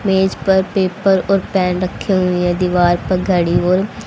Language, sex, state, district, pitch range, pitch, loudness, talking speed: Hindi, female, Haryana, Rohtak, 180-190 Hz, 185 Hz, -16 LUFS, 175 wpm